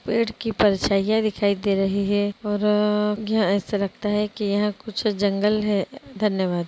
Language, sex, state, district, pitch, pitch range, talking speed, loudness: Hindi, female, Chhattisgarh, Bilaspur, 210 Hz, 200-210 Hz, 170 wpm, -22 LUFS